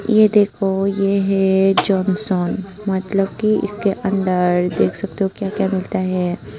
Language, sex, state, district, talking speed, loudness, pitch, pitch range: Hindi, female, Tripura, Unakoti, 145 wpm, -18 LUFS, 195 Hz, 190-200 Hz